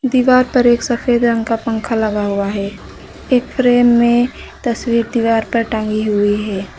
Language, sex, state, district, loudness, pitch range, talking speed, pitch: Hindi, female, West Bengal, Alipurduar, -15 LUFS, 215-245 Hz, 165 wpm, 230 Hz